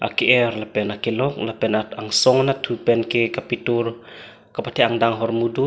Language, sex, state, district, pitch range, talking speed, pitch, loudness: Karbi, male, Assam, Karbi Anglong, 115-120 Hz, 170 wpm, 115 Hz, -20 LUFS